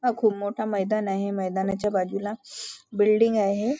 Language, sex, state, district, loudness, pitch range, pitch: Marathi, female, Maharashtra, Nagpur, -25 LUFS, 195-220 Hz, 205 Hz